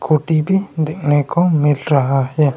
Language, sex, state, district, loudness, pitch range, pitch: Hindi, male, Arunachal Pradesh, Longding, -16 LUFS, 145-160 Hz, 150 Hz